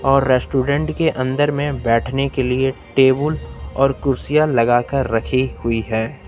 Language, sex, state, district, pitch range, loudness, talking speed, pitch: Hindi, male, Uttar Pradesh, Lucknow, 125-140 Hz, -18 LUFS, 145 wpm, 135 Hz